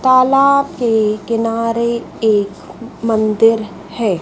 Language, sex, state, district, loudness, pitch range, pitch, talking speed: Hindi, female, Madhya Pradesh, Dhar, -15 LUFS, 215-235 Hz, 230 Hz, 85 wpm